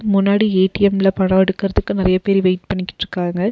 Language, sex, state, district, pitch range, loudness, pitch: Tamil, female, Tamil Nadu, Nilgiris, 185-200 Hz, -17 LUFS, 195 Hz